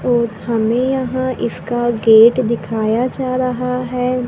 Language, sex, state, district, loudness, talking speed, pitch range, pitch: Hindi, female, Maharashtra, Gondia, -16 LUFS, 125 wpm, 230-255 Hz, 245 Hz